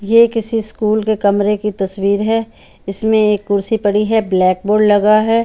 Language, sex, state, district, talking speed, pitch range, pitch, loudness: Hindi, female, Haryana, Charkhi Dadri, 185 wpm, 200-220 Hz, 210 Hz, -14 LUFS